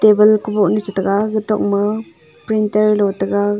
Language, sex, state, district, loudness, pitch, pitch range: Wancho, female, Arunachal Pradesh, Longding, -16 LUFS, 210 Hz, 200-215 Hz